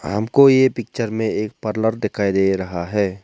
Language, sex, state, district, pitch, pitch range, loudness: Hindi, male, Arunachal Pradesh, Lower Dibang Valley, 110 Hz, 100-115 Hz, -19 LUFS